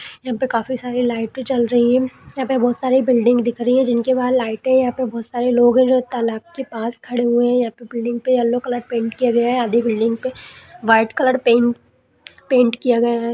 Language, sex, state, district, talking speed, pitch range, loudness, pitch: Hindi, female, Bihar, Gaya, 240 wpm, 235-255 Hz, -18 LUFS, 245 Hz